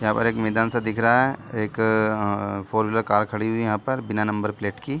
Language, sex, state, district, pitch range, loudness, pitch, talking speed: Hindi, male, Chhattisgarh, Bilaspur, 105-115 Hz, -23 LUFS, 110 Hz, 275 wpm